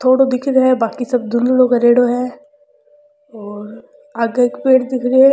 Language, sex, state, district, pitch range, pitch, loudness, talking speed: Rajasthani, female, Rajasthan, Churu, 240-265 Hz, 255 Hz, -14 LUFS, 180 wpm